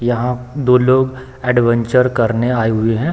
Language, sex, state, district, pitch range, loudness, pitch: Hindi, male, Bihar, Samastipur, 115-130 Hz, -15 LUFS, 125 Hz